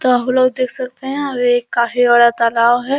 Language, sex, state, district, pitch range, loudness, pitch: Hindi, female, Bihar, Araria, 240-255 Hz, -15 LUFS, 245 Hz